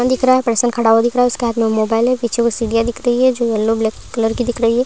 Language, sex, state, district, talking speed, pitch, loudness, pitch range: Hindi, female, Uttar Pradesh, Deoria, 360 wpm, 235 Hz, -16 LUFS, 225-245 Hz